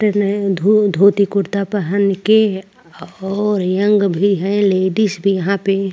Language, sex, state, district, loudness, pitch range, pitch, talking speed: Hindi, female, Maharashtra, Chandrapur, -15 LUFS, 195-205 Hz, 200 Hz, 140 wpm